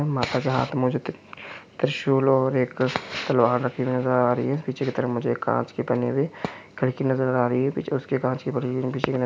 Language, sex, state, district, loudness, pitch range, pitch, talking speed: Hindi, male, Chhattisgarh, Korba, -24 LUFS, 125-130 Hz, 130 Hz, 215 wpm